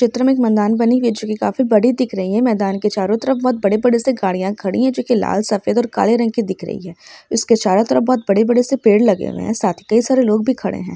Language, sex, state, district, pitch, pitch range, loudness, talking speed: Hindi, female, Bihar, Sitamarhi, 225 Hz, 205-245 Hz, -16 LUFS, 280 wpm